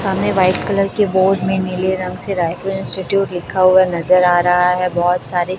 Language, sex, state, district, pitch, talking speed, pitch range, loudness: Hindi, male, Chhattisgarh, Raipur, 185 Hz, 205 wpm, 180-190 Hz, -16 LUFS